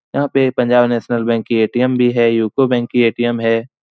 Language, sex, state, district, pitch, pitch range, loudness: Hindi, male, Bihar, Supaul, 120 Hz, 115-125 Hz, -15 LUFS